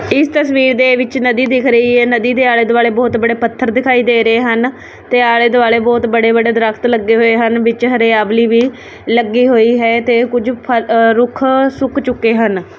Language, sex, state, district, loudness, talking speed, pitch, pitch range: Punjabi, female, Punjab, Kapurthala, -12 LUFS, 190 wpm, 235 Hz, 230-250 Hz